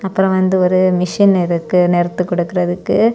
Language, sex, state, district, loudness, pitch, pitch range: Tamil, female, Tamil Nadu, Kanyakumari, -15 LUFS, 180 Hz, 175-190 Hz